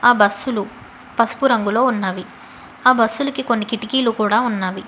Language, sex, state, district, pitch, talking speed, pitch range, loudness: Telugu, female, Telangana, Hyderabad, 230 Hz, 135 wpm, 210-250 Hz, -18 LUFS